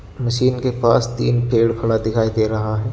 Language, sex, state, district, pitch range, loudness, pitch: Hindi, male, Jharkhand, Garhwa, 110-120 Hz, -18 LUFS, 115 Hz